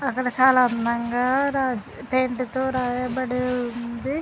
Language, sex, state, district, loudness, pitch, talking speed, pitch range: Telugu, female, Andhra Pradesh, Anantapur, -23 LUFS, 250 Hz, 115 wpm, 245-260 Hz